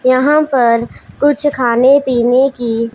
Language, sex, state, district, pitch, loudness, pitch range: Hindi, female, Punjab, Pathankot, 255 Hz, -12 LUFS, 235-280 Hz